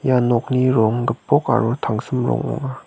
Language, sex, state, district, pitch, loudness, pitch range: Garo, male, Meghalaya, West Garo Hills, 125 Hz, -19 LUFS, 115-130 Hz